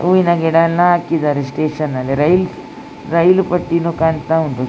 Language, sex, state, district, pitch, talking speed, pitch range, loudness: Kannada, female, Karnataka, Dakshina Kannada, 165 Hz, 140 wpm, 155-180 Hz, -15 LUFS